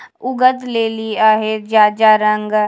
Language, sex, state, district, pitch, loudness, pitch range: Marathi, female, Maharashtra, Washim, 220 Hz, -14 LUFS, 215-225 Hz